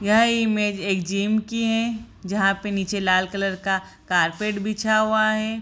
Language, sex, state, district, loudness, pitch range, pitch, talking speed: Hindi, female, Bihar, Sitamarhi, -22 LUFS, 195-220 Hz, 210 Hz, 180 wpm